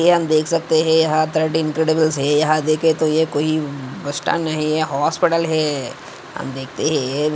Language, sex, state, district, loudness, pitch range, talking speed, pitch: Hindi, male, Maharashtra, Aurangabad, -18 LUFS, 150-160 Hz, 145 wpm, 155 Hz